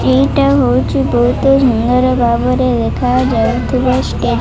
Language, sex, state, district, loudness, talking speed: Odia, female, Odisha, Malkangiri, -13 LUFS, 110 wpm